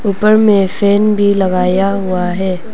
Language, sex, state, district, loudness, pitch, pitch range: Hindi, female, Arunachal Pradesh, Papum Pare, -12 LUFS, 200 Hz, 185-205 Hz